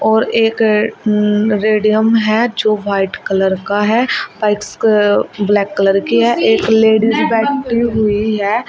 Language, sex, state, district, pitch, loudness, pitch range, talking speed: Hindi, female, Uttar Pradesh, Shamli, 215 Hz, -14 LUFS, 205-225 Hz, 130 wpm